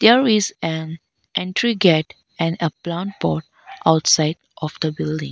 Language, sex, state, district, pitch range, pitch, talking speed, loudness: English, female, Arunachal Pradesh, Lower Dibang Valley, 155-185 Hz, 165 Hz, 145 wpm, -20 LUFS